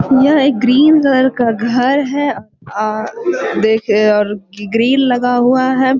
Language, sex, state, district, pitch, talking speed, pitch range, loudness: Hindi, female, Bihar, Jamui, 250 Hz, 130 wpm, 220-275 Hz, -13 LUFS